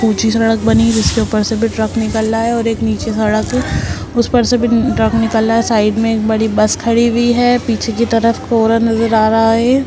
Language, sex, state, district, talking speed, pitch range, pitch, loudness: Hindi, female, Bihar, Muzaffarpur, 255 wpm, 220-230 Hz, 225 Hz, -13 LUFS